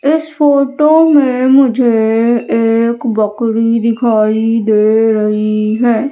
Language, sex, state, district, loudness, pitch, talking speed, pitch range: Hindi, female, Madhya Pradesh, Umaria, -11 LUFS, 230 Hz, 100 wpm, 220-265 Hz